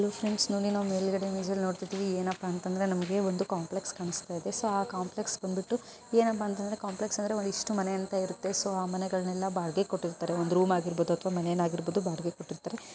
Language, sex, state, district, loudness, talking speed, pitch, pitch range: Kannada, female, Karnataka, Gulbarga, -31 LUFS, 180 wpm, 190 Hz, 185-205 Hz